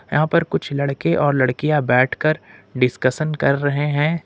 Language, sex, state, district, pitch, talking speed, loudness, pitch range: Hindi, male, Jharkhand, Ranchi, 145 Hz, 155 wpm, -19 LUFS, 130-155 Hz